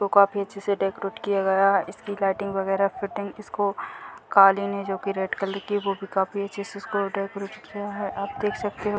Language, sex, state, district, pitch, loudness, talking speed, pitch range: Hindi, female, Uttar Pradesh, Deoria, 200 Hz, -25 LUFS, 225 wpm, 195-205 Hz